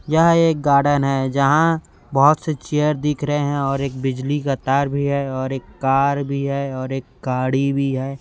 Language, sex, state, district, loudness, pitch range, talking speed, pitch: Hindi, male, Chhattisgarh, Raipur, -19 LUFS, 135-145 Hz, 205 wpm, 140 Hz